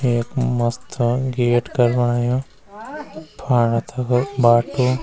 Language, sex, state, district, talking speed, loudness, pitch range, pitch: Garhwali, male, Uttarakhand, Uttarkashi, 85 wpm, -19 LUFS, 120-130 Hz, 125 Hz